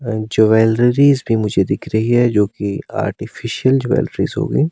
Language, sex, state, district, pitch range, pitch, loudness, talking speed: Hindi, male, Himachal Pradesh, Shimla, 110-125 Hz, 115 Hz, -16 LUFS, 150 wpm